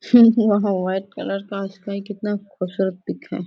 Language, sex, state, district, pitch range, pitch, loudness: Hindi, female, Bihar, Kishanganj, 195-210 Hz, 200 Hz, -21 LUFS